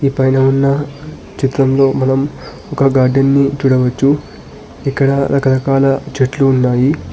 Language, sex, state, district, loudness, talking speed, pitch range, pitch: Telugu, male, Telangana, Hyderabad, -13 LUFS, 110 wpm, 135-140 Hz, 135 Hz